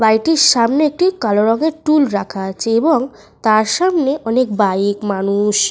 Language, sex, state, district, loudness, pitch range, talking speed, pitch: Bengali, female, Jharkhand, Sahebganj, -15 LUFS, 205-300 Hz, 145 wpm, 225 Hz